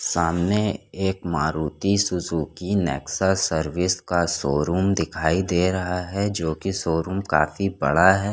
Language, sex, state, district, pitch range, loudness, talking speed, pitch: Hindi, male, Chhattisgarh, Korba, 80-95 Hz, -23 LUFS, 130 wpm, 90 Hz